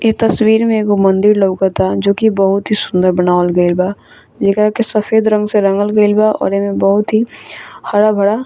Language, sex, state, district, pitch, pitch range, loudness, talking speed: Bhojpuri, female, Bihar, Saran, 205 Hz, 195-215 Hz, -13 LUFS, 200 wpm